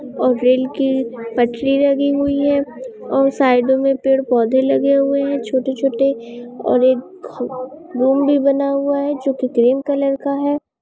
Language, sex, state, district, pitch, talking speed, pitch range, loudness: Hindi, female, Chhattisgarh, Bastar, 275 Hz, 155 wpm, 255-280 Hz, -17 LUFS